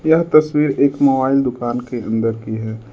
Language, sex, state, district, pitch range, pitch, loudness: Hindi, male, Uttar Pradesh, Lucknow, 115-140 Hz, 130 Hz, -17 LUFS